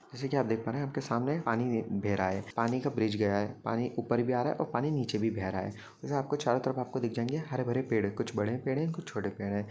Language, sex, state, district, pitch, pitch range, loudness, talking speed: Hindi, male, Maharashtra, Sindhudurg, 120 Hz, 105-135 Hz, -32 LUFS, 305 wpm